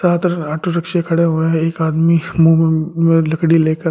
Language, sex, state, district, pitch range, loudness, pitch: Hindi, male, Delhi, New Delhi, 160-170 Hz, -15 LUFS, 165 Hz